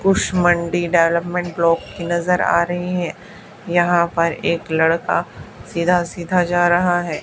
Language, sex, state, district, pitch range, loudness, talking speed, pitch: Hindi, female, Haryana, Charkhi Dadri, 170-180 Hz, -18 LUFS, 140 wpm, 175 Hz